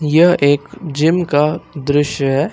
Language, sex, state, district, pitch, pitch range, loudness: Hindi, male, Uttar Pradesh, Lucknow, 150 Hz, 145-165 Hz, -15 LUFS